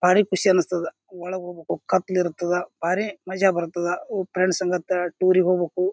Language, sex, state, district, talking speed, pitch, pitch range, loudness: Kannada, male, Karnataka, Bijapur, 150 wpm, 180 Hz, 175-185 Hz, -23 LUFS